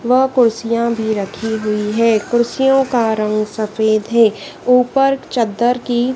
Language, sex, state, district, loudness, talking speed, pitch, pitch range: Hindi, female, Madhya Pradesh, Dhar, -16 LUFS, 135 wpm, 230 Hz, 215-245 Hz